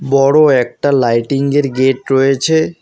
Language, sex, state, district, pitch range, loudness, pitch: Bengali, male, West Bengal, Alipurduar, 130-145 Hz, -13 LUFS, 135 Hz